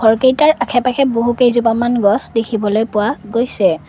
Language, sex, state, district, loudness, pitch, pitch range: Assamese, female, Assam, Kamrup Metropolitan, -14 LUFS, 235 Hz, 220-245 Hz